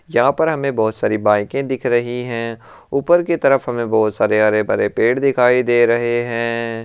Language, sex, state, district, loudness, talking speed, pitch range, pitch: Marwari, male, Rajasthan, Churu, -17 LUFS, 190 wpm, 115-130 Hz, 120 Hz